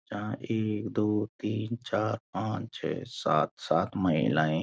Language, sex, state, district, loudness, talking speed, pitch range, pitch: Hindi, male, Uttarakhand, Uttarkashi, -30 LUFS, 140 wpm, 105-110 Hz, 110 Hz